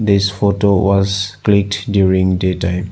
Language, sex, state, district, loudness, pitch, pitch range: English, male, Assam, Sonitpur, -15 LUFS, 100 Hz, 95-100 Hz